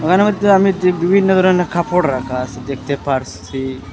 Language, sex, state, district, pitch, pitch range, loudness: Bengali, male, Assam, Hailakandi, 170 Hz, 130-185 Hz, -16 LUFS